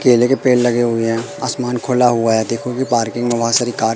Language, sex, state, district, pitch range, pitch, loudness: Hindi, female, Madhya Pradesh, Katni, 115-125 Hz, 120 Hz, -16 LUFS